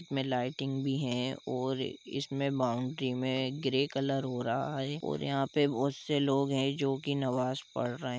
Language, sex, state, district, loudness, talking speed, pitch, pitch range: Hindi, male, Jharkhand, Jamtara, -33 LUFS, 200 wpm, 135 Hz, 130-140 Hz